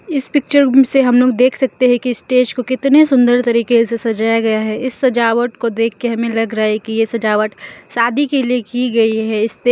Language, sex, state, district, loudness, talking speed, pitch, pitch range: Hindi, female, Mizoram, Aizawl, -14 LUFS, 240 wpm, 240 Hz, 225-255 Hz